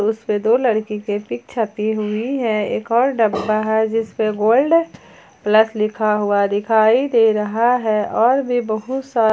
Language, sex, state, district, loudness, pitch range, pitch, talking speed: Hindi, female, Jharkhand, Ranchi, -18 LUFS, 210-235 Hz, 220 Hz, 165 wpm